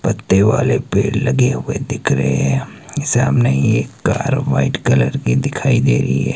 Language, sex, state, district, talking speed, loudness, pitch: Hindi, male, Himachal Pradesh, Shimla, 180 wpm, -16 LUFS, 100 Hz